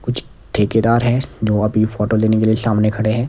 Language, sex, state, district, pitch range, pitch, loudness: Hindi, male, Himachal Pradesh, Shimla, 105-115 Hz, 110 Hz, -17 LUFS